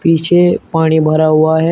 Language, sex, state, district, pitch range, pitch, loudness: Hindi, male, Uttar Pradesh, Shamli, 155-165 Hz, 160 Hz, -11 LUFS